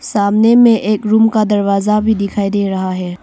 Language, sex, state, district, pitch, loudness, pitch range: Hindi, female, Arunachal Pradesh, Longding, 210 Hz, -13 LUFS, 200-220 Hz